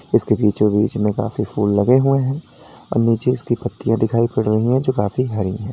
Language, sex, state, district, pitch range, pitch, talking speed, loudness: Hindi, male, Uttar Pradesh, Lalitpur, 105-125 Hz, 115 Hz, 220 wpm, -18 LUFS